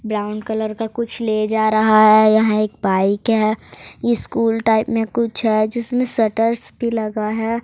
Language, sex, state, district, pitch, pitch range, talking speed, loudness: Hindi, female, Odisha, Sambalpur, 220 Hz, 215-230 Hz, 180 wpm, -17 LUFS